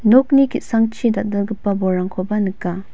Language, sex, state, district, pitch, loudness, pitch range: Garo, female, Meghalaya, West Garo Hills, 205 Hz, -18 LUFS, 190-230 Hz